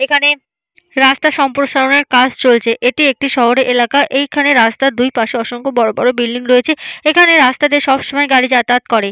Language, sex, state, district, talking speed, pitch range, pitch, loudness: Bengali, female, West Bengal, Dakshin Dinajpur, 175 wpm, 245-285 Hz, 265 Hz, -12 LUFS